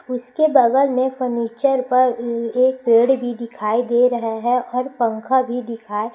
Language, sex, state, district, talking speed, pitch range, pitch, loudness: Hindi, female, Chhattisgarh, Raipur, 165 wpm, 235-255 Hz, 245 Hz, -19 LUFS